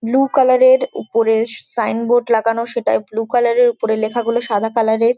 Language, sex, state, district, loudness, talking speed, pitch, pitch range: Bengali, female, West Bengal, Jhargram, -16 LUFS, 175 wpm, 235 Hz, 225-245 Hz